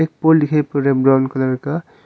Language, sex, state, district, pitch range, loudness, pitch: Hindi, male, Arunachal Pradesh, Longding, 135-160 Hz, -16 LUFS, 140 Hz